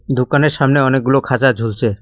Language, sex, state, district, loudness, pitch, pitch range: Bengali, male, West Bengal, Cooch Behar, -14 LUFS, 130 Hz, 125-135 Hz